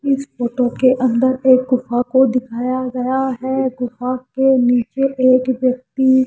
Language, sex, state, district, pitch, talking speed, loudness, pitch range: Hindi, female, Rajasthan, Jaipur, 255 Hz, 145 wpm, -17 LUFS, 250-260 Hz